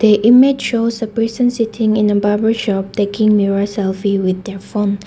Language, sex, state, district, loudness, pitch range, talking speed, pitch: English, female, Nagaland, Dimapur, -15 LUFS, 200-225 Hz, 190 wpm, 210 Hz